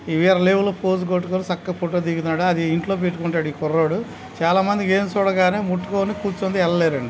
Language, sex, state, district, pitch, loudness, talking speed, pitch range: Telugu, male, Andhra Pradesh, Krishna, 180 Hz, -20 LUFS, 170 wpm, 170-195 Hz